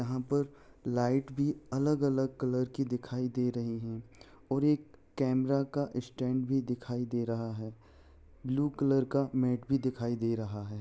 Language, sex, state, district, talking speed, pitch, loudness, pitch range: Hindi, male, Bihar, Jahanabad, 170 wpm, 125 Hz, -33 LUFS, 120-135 Hz